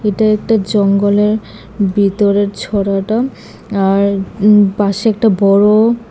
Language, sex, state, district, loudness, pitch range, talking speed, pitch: Bengali, female, Tripura, West Tripura, -13 LUFS, 200-215 Hz, 90 wpm, 205 Hz